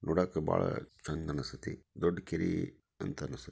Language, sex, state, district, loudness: Kannada, male, Karnataka, Dharwad, -36 LUFS